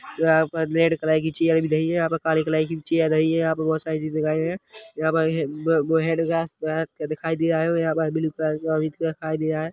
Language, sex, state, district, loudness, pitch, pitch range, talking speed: Hindi, male, Chhattisgarh, Rajnandgaon, -23 LUFS, 160 Hz, 155-165 Hz, 270 wpm